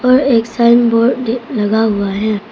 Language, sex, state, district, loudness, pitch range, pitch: Hindi, female, Arunachal Pradesh, Papum Pare, -13 LUFS, 215-240 Hz, 230 Hz